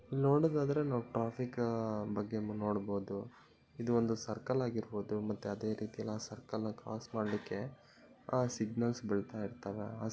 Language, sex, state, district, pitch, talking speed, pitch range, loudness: Kannada, male, Karnataka, Bellary, 110 Hz, 120 wpm, 105-120 Hz, -37 LUFS